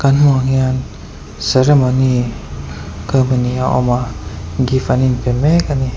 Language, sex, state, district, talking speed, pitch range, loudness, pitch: Mizo, male, Mizoram, Aizawl, 130 wpm, 105-130 Hz, -15 LUFS, 130 Hz